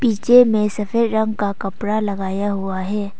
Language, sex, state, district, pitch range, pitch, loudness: Hindi, female, Arunachal Pradesh, Papum Pare, 200-220 Hz, 210 Hz, -18 LUFS